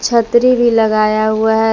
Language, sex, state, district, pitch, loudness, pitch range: Hindi, female, Jharkhand, Palamu, 225 Hz, -12 LUFS, 220-235 Hz